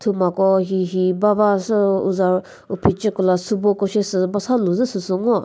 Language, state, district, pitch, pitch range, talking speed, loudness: Chakhesang, Nagaland, Dimapur, 195 Hz, 185-210 Hz, 155 wpm, -19 LUFS